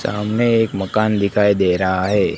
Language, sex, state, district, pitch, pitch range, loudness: Hindi, male, Gujarat, Gandhinagar, 105 Hz, 95-110 Hz, -17 LUFS